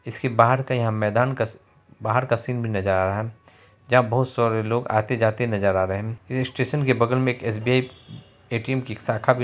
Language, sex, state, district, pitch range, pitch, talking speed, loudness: Hindi, male, Bihar, Araria, 110-130 Hz, 115 Hz, 230 wpm, -23 LUFS